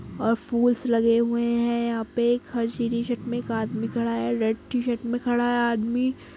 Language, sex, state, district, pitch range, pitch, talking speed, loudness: Hindi, female, Uttar Pradesh, Muzaffarnagar, 230-240 Hz, 235 Hz, 215 wpm, -25 LUFS